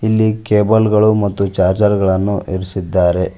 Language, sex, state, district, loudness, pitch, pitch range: Kannada, male, Karnataka, Koppal, -14 LUFS, 100 Hz, 95-110 Hz